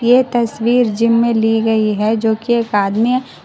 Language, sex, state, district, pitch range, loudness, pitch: Hindi, female, Karnataka, Koppal, 220-240 Hz, -15 LUFS, 230 Hz